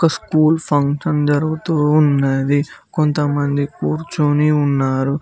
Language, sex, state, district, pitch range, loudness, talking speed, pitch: Telugu, male, Telangana, Mahabubabad, 145-155 Hz, -17 LUFS, 90 wpm, 150 Hz